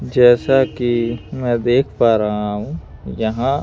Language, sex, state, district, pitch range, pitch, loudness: Hindi, male, Madhya Pradesh, Bhopal, 105-125 Hz, 120 Hz, -17 LUFS